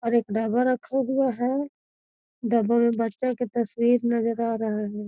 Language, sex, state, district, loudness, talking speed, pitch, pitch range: Magahi, female, Bihar, Gaya, -25 LUFS, 175 wpm, 235 Hz, 230-250 Hz